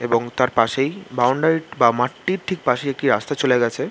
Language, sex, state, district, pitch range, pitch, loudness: Bengali, male, West Bengal, Jhargram, 120-145 Hz, 125 Hz, -20 LUFS